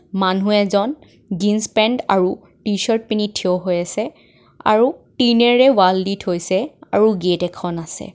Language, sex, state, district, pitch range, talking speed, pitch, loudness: Assamese, female, Assam, Kamrup Metropolitan, 185-220 Hz, 145 wpm, 205 Hz, -18 LUFS